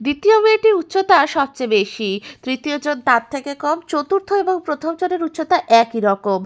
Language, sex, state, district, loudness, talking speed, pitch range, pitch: Bengali, female, West Bengal, Malda, -17 LUFS, 140 wpm, 245-365 Hz, 295 Hz